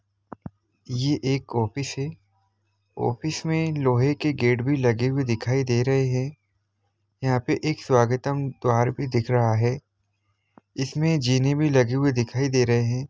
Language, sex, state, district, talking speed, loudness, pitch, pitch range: Hindi, male, Jharkhand, Jamtara, 155 wpm, -24 LUFS, 125 Hz, 115-140 Hz